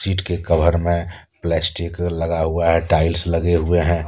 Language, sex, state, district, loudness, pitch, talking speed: Hindi, male, Jharkhand, Deoghar, -19 LUFS, 85 Hz, 160 wpm